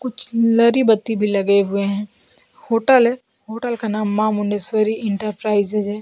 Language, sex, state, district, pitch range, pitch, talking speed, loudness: Hindi, female, Bihar, Kaimur, 205-230 Hz, 215 Hz, 160 wpm, -18 LUFS